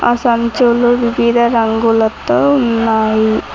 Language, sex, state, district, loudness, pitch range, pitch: Telugu, female, Telangana, Mahabubabad, -13 LUFS, 225-240 Hz, 235 Hz